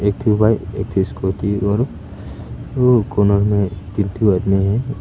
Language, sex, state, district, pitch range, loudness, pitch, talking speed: Hindi, male, Arunachal Pradesh, Papum Pare, 100-110 Hz, -18 LUFS, 100 Hz, 120 wpm